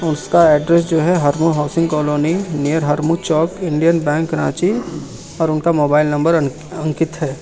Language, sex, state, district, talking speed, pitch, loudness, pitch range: Hindi, male, Jharkhand, Ranchi, 155 wpm, 160 Hz, -16 LUFS, 150-165 Hz